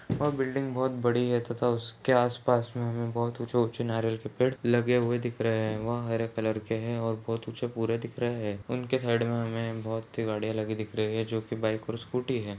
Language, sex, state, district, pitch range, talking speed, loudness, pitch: Hindi, male, Chhattisgarh, Balrampur, 110-120 Hz, 240 wpm, -30 LUFS, 115 Hz